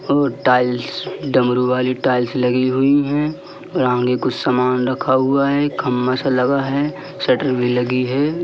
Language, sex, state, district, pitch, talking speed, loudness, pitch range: Hindi, male, Madhya Pradesh, Katni, 130 Hz, 155 wpm, -18 LUFS, 125-140 Hz